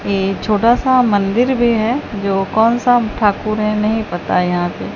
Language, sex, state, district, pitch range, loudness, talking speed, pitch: Hindi, female, Odisha, Sambalpur, 195-235 Hz, -15 LUFS, 180 wpm, 215 Hz